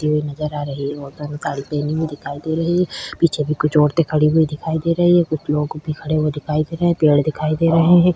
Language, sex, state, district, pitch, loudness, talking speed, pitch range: Hindi, female, Chhattisgarh, Korba, 155 Hz, -19 LUFS, 265 wpm, 150-165 Hz